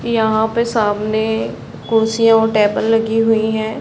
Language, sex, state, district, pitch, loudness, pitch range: Hindi, female, Chhattisgarh, Bastar, 220 Hz, -16 LUFS, 220-225 Hz